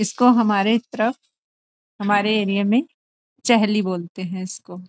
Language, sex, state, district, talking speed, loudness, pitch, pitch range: Hindi, female, Chhattisgarh, Rajnandgaon, 125 wpm, -20 LUFS, 210 Hz, 195-230 Hz